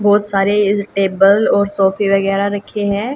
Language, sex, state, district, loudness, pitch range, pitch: Hindi, female, Haryana, Jhajjar, -15 LUFS, 195-205 Hz, 200 Hz